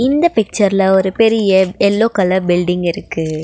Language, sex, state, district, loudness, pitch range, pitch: Tamil, female, Tamil Nadu, Nilgiris, -14 LUFS, 180-220 Hz, 190 Hz